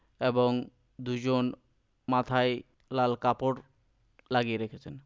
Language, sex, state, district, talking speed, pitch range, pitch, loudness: Bengali, male, West Bengal, Malda, 85 wpm, 115-125 Hz, 125 Hz, -30 LUFS